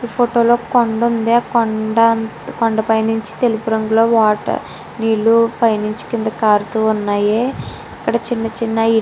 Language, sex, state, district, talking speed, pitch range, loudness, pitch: Telugu, female, Andhra Pradesh, Srikakulam, 115 wpm, 220-235 Hz, -16 LUFS, 225 Hz